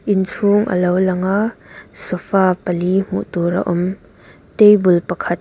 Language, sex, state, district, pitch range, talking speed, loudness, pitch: Mizo, female, Mizoram, Aizawl, 180-200 Hz, 135 wpm, -16 LUFS, 185 Hz